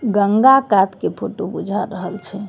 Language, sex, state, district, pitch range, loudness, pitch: Maithili, female, Bihar, Begusarai, 200-230 Hz, -17 LUFS, 205 Hz